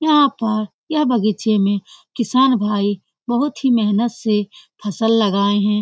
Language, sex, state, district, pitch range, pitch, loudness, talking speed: Hindi, female, Bihar, Lakhisarai, 210-260 Hz, 225 Hz, -18 LUFS, 145 wpm